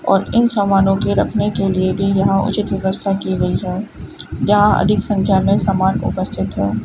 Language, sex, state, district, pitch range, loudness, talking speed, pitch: Hindi, female, Rajasthan, Bikaner, 190-205 Hz, -16 LUFS, 185 wpm, 195 Hz